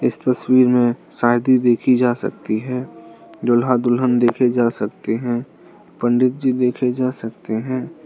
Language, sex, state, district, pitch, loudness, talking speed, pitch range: Hindi, male, Arunachal Pradesh, Lower Dibang Valley, 125 Hz, -18 LUFS, 150 wpm, 120-130 Hz